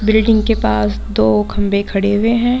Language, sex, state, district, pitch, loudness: Hindi, female, Bihar, Saran, 205 Hz, -15 LUFS